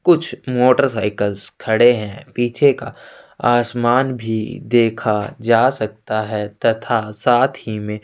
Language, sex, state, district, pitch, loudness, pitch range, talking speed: Hindi, male, Chhattisgarh, Sukma, 115 Hz, -18 LUFS, 110-125 Hz, 120 wpm